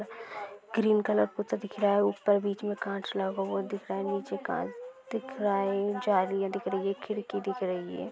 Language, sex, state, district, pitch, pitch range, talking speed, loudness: Hindi, female, Maharashtra, Nagpur, 200 Hz, 195-210 Hz, 200 wpm, -31 LUFS